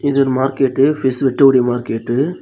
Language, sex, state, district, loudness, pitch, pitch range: Tamil, male, Tamil Nadu, Kanyakumari, -15 LUFS, 135 Hz, 125-140 Hz